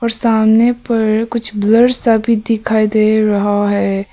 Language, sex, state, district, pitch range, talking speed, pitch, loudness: Hindi, female, Arunachal Pradesh, Papum Pare, 215-230 Hz, 160 wpm, 220 Hz, -13 LUFS